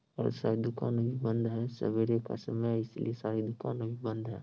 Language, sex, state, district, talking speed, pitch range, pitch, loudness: Hindi, male, Bihar, Sitamarhi, 205 wpm, 110-115 Hz, 115 Hz, -34 LUFS